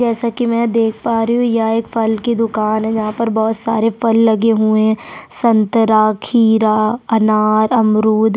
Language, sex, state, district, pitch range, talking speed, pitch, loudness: Hindi, female, Chhattisgarh, Sukma, 215-230 Hz, 185 wpm, 225 Hz, -14 LUFS